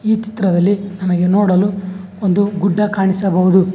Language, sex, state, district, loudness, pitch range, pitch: Kannada, male, Karnataka, Bangalore, -15 LUFS, 185-200 Hz, 195 Hz